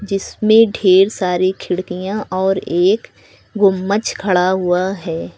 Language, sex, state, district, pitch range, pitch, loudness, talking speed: Hindi, female, Uttar Pradesh, Lucknow, 185-210 Hz, 190 Hz, -16 LUFS, 110 wpm